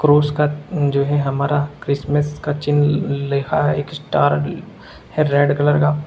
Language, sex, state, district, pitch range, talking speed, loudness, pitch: Hindi, male, Uttar Pradesh, Saharanpur, 140-150 Hz, 160 wpm, -18 LUFS, 145 Hz